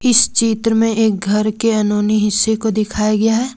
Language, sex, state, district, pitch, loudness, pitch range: Hindi, female, Jharkhand, Ranchi, 220 Hz, -15 LUFS, 210-225 Hz